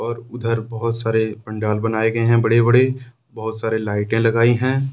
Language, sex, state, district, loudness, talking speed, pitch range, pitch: Hindi, male, Jharkhand, Ranchi, -19 LUFS, 180 wpm, 110-120 Hz, 115 Hz